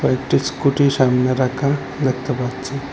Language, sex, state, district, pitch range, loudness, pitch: Bengali, male, Assam, Hailakandi, 130-140 Hz, -19 LUFS, 130 Hz